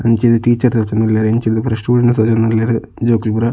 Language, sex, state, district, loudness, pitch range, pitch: Tulu, male, Karnataka, Dakshina Kannada, -14 LUFS, 110-120 Hz, 115 Hz